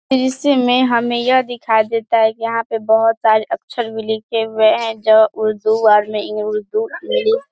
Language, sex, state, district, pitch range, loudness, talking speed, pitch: Hindi, female, Bihar, Saharsa, 220-250 Hz, -16 LUFS, 145 wpm, 225 Hz